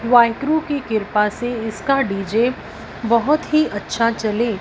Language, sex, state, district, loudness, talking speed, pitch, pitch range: Hindi, female, Punjab, Fazilka, -19 LUFS, 130 wpm, 230 Hz, 220-270 Hz